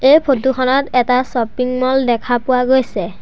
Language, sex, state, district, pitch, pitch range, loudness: Assamese, male, Assam, Sonitpur, 255 Hz, 245-265 Hz, -15 LUFS